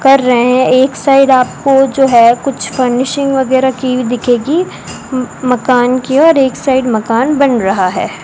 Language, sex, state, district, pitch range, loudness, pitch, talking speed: Hindi, male, Rajasthan, Bikaner, 245-270 Hz, -11 LUFS, 255 Hz, 170 wpm